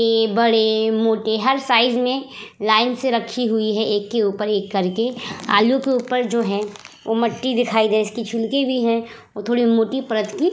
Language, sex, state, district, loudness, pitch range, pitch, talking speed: Hindi, female, Uttar Pradesh, Budaun, -19 LUFS, 215-245 Hz, 230 Hz, 195 wpm